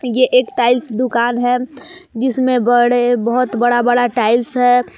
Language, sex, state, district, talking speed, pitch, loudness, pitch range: Hindi, female, Jharkhand, Palamu, 145 wpm, 245 Hz, -15 LUFS, 240-250 Hz